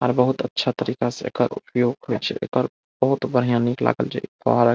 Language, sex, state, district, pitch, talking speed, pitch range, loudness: Maithili, male, Bihar, Saharsa, 125 Hz, 190 wpm, 120-130 Hz, -23 LUFS